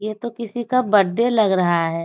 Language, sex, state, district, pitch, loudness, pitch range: Hindi, female, Bihar, Lakhisarai, 215 Hz, -19 LUFS, 180-235 Hz